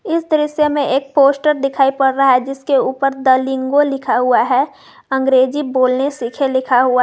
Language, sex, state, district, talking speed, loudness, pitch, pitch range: Hindi, female, Jharkhand, Garhwa, 180 wpm, -15 LUFS, 270 Hz, 260-285 Hz